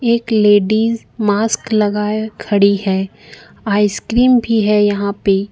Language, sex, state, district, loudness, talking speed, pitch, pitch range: Hindi, female, Jharkhand, Ranchi, -15 LUFS, 120 wpm, 210 Hz, 205-225 Hz